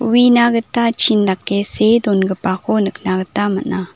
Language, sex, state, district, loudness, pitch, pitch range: Garo, female, Meghalaya, South Garo Hills, -15 LUFS, 205 Hz, 190-230 Hz